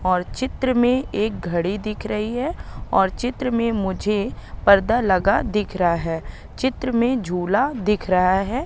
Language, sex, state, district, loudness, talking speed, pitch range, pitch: Hindi, female, Madhya Pradesh, Katni, -21 LUFS, 160 wpm, 190-245 Hz, 210 Hz